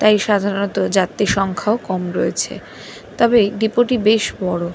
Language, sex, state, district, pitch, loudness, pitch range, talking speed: Bengali, female, West Bengal, Dakshin Dinajpur, 205 Hz, -17 LUFS, 190-220 Hz, 140 wpm